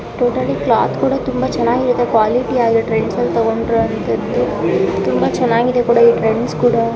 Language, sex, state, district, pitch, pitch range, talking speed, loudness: Kannada, female, Karnataka, Raichur, 235 Hz, 225-245 Hz, 140 wpm, -15 LUFS